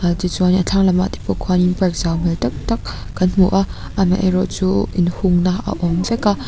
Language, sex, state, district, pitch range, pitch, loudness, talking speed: Mizo, female, Mizoram, Aizawl, 175-190 Hz, 185 Hz, -18 LUFS, 240 wpm